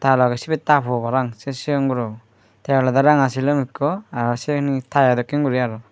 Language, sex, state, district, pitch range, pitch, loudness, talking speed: Chakma, male, Tripura, Unakoti, 120-140 Hz, 130 Hz, -19 LUFS, 215 wpm